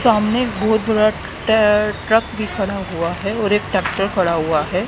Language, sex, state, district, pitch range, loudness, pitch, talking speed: Hindi, female, Haryana, Jhajjar, 195-220 Hz, -18 LUFS, 210 Hz, 195 wpm